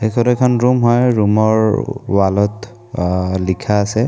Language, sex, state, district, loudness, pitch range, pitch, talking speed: Assamese, male, Assam, Kamrup Metropolitan, -15 LUFS, 100-120 Hz, 110 Hz, 160 wpm